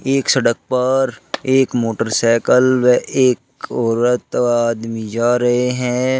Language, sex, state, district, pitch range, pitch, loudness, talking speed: Hindi, male, Uttar Pradesh, Shamli, 115-130 Hz, 125 Hz, -16 LUFS, 115 wpm